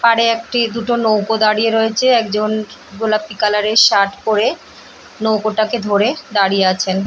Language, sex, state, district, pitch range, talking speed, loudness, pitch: Bengali, female, West Bengal, Purulia, 210-225 Hz, 155 wpm, -15 LUFS, 215 Hz